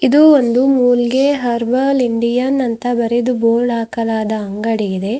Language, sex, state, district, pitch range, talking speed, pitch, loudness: Kannada, female, Karnataka, Bidar, 230-255 Hz, 125 wpm, 240 Hz, -15 LUFS